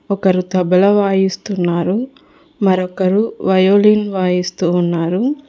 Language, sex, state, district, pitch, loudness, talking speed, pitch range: Telugu, female, Telangana, Hyderabad, 190 Hz, -15 LUFS, 75 wpm, 180-205 Hz